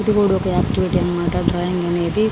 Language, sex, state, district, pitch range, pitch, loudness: Telugu, female, Andhra Pradesh, Srikakulam, 175-200 Hz, 180 Hz, -19 LUFS